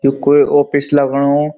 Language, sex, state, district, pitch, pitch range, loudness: Garhwali, male, Uttarakhand, Uttarkashi, 145 Hz, 140-145 Hz, -13 LUFS